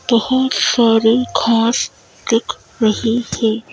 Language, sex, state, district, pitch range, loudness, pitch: Hindi, female, Madhya Pradesh, Bhopal, 225-240 Hz, -16 LUFS, 230 Hz